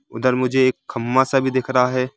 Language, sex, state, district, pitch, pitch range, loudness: Hindi, male, Jharkhand, Jamtara, 130 Hz, 125-130 Hz, -19 LUFS